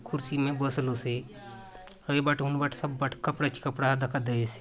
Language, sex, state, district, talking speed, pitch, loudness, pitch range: Halbi, male, Chhattisgarh, Bastar, 210 wpm, 140 Hz, -30 LUFS, 130-145 Hz